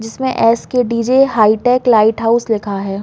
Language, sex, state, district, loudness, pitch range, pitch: Hindi, female, Chhattisgarh, Balrampur, -13 LUFS, 220-245 Hz, 230 Hz